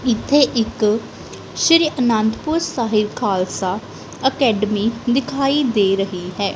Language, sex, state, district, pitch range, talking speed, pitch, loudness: Punjabi, female, Punjab, Kapurthala, 210-270 Hz, 100 wpm, 230 Hz, -18 LUFS